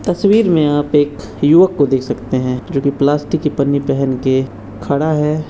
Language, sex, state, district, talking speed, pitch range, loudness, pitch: Hindi, male, Bihar, Purnia, 195 wpm, 130-150 Hz, -15 LUFS, 145 Hz